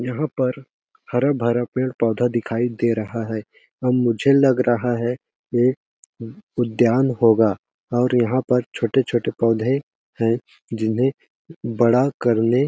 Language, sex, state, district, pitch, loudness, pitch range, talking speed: Hindi, male, Chhattisgarh, Balrampur, 120 Hz, -20 LUFS, 115-130 Hz, 125 wpm